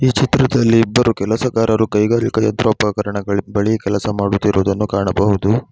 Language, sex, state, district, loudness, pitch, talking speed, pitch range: Kannada, male, Karnataka, Bangalore, -16 LUFS, 105 Hz, 105 wpm, 100-115 Hz